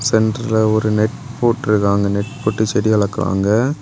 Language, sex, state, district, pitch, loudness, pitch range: Tamil, male, Tamil Nadu, Kanyakumari, 110 Hz, -17 LUFS, 105-115 Hz